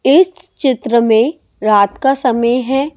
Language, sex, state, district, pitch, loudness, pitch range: Hindi, male, Delhi, New Delhi, 255 Hz, -13 LUFS, 235-275 Hz